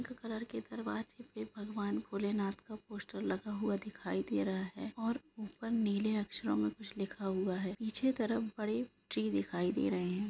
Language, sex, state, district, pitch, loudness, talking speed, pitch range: Hindi, female, Andhra Pradesh, Anantapur, 210 Hz, -38 LUFS, 175 wpm, 185-220 Hz